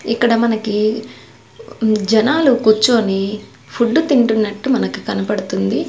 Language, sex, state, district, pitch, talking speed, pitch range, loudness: Telugu, female, Andhra Pradesh, Sri Satya Sai, 225 Hz, 80 wpm, 210-250 Hz, -16 LUFS